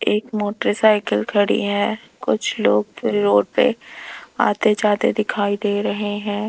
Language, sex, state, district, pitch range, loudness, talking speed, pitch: Hindi, female, Rajasthan, Jaipur, 205-210 Hz, -19 LUFS, 140 wpm, 205 Hz